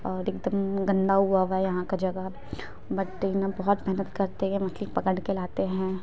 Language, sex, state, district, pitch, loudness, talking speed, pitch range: Hindi, female, Bihar, Muzaffarpur, 195 Hz, -28 LUFS, 210 wpm, 190-195 Hz